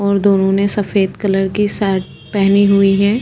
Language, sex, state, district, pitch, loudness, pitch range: Hindi, female, Uttar Pradesh, Budaun, 200 Hz, -14 LUFS, 195-205 Hz